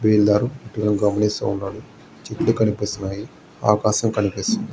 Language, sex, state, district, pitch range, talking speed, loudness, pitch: Telugu, male, Andhra Pradesh, Guntur, 105-110 Hz, 50 wpm, -21 LUFS, 105 Hz